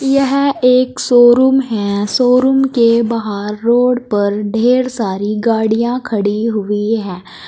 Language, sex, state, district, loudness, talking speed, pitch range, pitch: Hindi, female, Uttar Pradesh, Saharanpur, -13 LUFS, 120 wpm, 210-250 Hz, 230 Hz